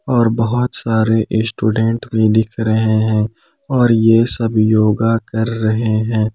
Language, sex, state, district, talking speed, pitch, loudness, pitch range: Hindi, male, Jharkhand, Palamu, 140 wpm, 110 Hz, -15 LUFS, 110-115 Hz